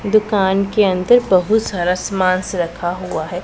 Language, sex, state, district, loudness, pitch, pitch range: Hindi, female, Punjab, Pathankot, -17 LUFS, 185 Hz, 180-205 Hz